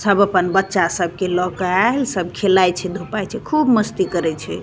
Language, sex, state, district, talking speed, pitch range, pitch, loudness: Maithili, female, Bihar, Begusarai, 195 wpm, 180-205 Hz, 190 Hz, -18 LUFS